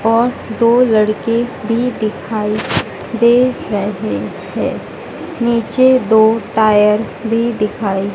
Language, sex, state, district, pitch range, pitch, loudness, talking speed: Hindi, female, Madhya Pradesh, Dhar, 215-235 Hz, 225 Hz, -15 LUFS, 95 wpm